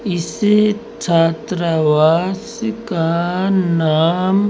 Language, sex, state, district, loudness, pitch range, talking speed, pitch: Hindi, male, Rajasthan, Jaipur, -16 LUFS, 165-210 Hz, 55 wpm, 180 Hz